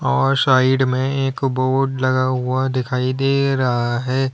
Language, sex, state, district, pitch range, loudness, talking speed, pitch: Hindi, male, Uttar Pradesh, Lalitpur, 130-135 Hz, -18 LUFS, 150 wpm, 130 Hz